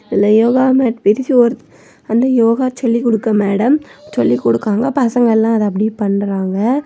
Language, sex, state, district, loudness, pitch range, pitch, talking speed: Tamil, female, Tamil Nadu, Kanyakumari, -14 LUFS, 205-245 Hz, 230 Hz, 150 wpm